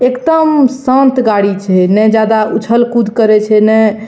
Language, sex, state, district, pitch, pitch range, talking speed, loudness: Maithili, female, Bihar, Purnia, 220 Hz, 215-255 Hz, 175 wpm, -10 LUFS